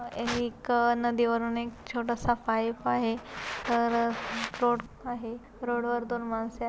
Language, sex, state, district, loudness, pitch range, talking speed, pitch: Marathi, female, Maharashtra, Pune, -30 LUFS, 230-240 Hz, 110 wpm, 235 Hz